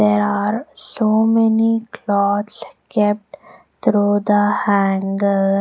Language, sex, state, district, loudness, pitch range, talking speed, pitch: English, female, Punjab, Pathankot, -17 LUFS, 200-220 Hz, 95 wpm, 205 Hz